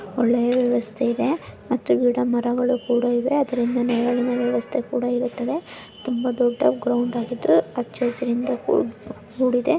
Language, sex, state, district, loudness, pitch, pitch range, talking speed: Kannada, female, Karnataka, Mysore, -22 LUFS, 245 Hz, 240-250 Hz, 115 wpm